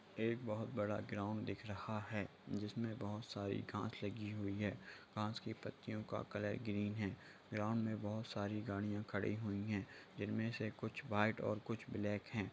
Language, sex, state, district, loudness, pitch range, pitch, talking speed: Hindi, male, Bihar, Lakhisarai, -44 LUFS, 105-110 Hz, 105 Hz, 175 wpm